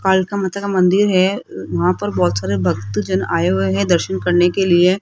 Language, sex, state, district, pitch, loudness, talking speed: Hindi, female, Rajasthan, Jaipur, 175 Hz, -17 LUFS, 215 wpm